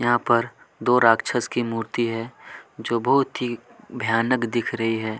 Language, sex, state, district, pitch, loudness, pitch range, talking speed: Hindi, male, Chhattisgarh, Kabirdham, 120 Hz, -22 LUFS, 115-120 Hz, 160 wpm